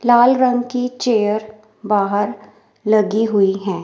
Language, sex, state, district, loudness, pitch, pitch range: Hindi, female, Himachal Pradesh, Shimla, -17 LUFS, 215 Hz, 205-245 Hz